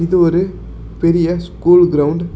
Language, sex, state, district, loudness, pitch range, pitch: Tamil, male, Tamil Nadu, Namakkal, -14 LUFS, 170-175 Hz, 170 Hz